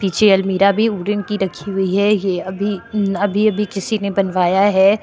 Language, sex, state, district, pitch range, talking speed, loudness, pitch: Hindi, female, Chhattisgarh, Korba, 190-205 Hz, 180 wpm, -17 LUFS, 200 Hz